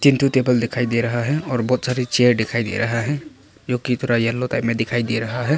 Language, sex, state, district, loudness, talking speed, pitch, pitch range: Hindi, male, Arunachal Pradesh, Papum Pare, -20 LUFS, 270 wpm, 120 Hz, 115-125 Hz